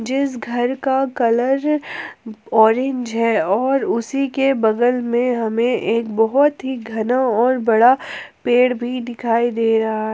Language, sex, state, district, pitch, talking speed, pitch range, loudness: Hindi, female, Jharkhand, Palamu, 245 Hz, 140 wpm, 230-265 Hz, -18 LUFS